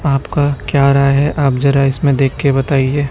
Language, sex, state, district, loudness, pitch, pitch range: Hindi, male, Chhattisgarh, Raipur, -13 LUFS, 140 Hz, 135-145 Hz